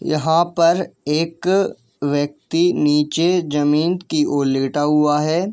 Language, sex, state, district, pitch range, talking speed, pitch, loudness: Hindi, male, Jharkhand, Jamtara, 145-170 Hz, 120 wpm, 155 Hz, -18 LUFS